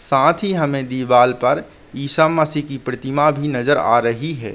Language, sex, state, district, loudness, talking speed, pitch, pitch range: Hindi, male, Uttar Pradesh, Muzaffarnagar, -17 LUFS, 185 wpm, 140 Hz, 125-150 Hz